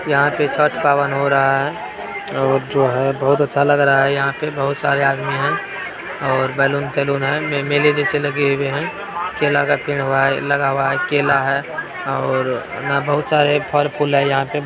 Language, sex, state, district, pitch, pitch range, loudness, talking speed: Maithili, male, Bihar, Araria, 140 Hz, 135-145 Hz, -18 LUFS, 210 wpm